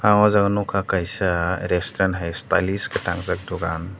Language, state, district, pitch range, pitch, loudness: Kokborok, Tripura, Dhalai, 90-100 Hz, 95 Hz, -22 LUFS